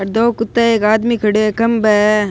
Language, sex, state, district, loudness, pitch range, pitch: Rajasthani, male, Rajasthan, Nagaur, -14 LUFS, 210-230 Hz, 220 Hz